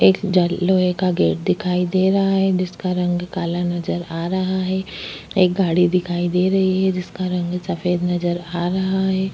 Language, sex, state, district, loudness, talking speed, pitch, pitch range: Hindi, female, Chhattisgarh, Kabirdham, -20 LUFS, 185 wpm, 180 Hz, 175-190 Hz